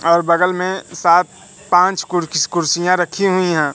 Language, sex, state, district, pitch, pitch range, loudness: Hindi, male, Madhya Pradesh, Katni, 175 Hz, 170-185 Hz, -16 LUFS